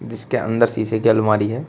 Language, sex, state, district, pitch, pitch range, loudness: Hindi, male, Uttar Pradesh, Shamli, 115 Hz, 110-115 Hz, -18 LUFS